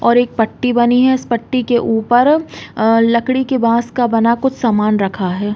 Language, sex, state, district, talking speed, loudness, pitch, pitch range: Hindi, female, Uttar Pradesh, Hamirpur, 205 wpm, -14 LUFS, 235 Hz, 225-250 Hz